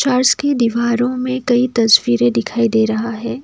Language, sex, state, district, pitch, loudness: Hindi, female, Assam, Kamrup Metropolitan, 235 Hz, -15 LUFS